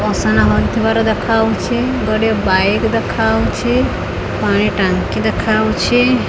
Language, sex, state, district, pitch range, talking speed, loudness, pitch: Odia, female, Odisha, Khordha, 220-240 Hz, 85 wpm, -15 LUFS, 225 Hz